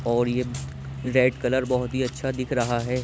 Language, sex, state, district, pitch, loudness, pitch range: Hindi, male, Uttar Pradesh, Jyotiba Phule Nagar, 125 Hz, -25 LUFS, 120-130 Hz